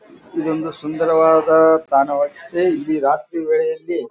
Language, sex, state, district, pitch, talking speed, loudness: Kannada, male, Karnataka, Bijapur, 160 Hz, 100 wpm, -17 LUFS